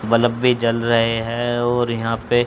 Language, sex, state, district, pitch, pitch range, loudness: Hindi, male, Haryana, Charkhi Dadri, 115 Hz, 115-120 Hz, -19 LUFS